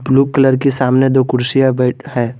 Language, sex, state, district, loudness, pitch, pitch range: Hindi, male, Jharkhand, Garhwa, -14 LUFS, 130 Hz, 125-135 Hz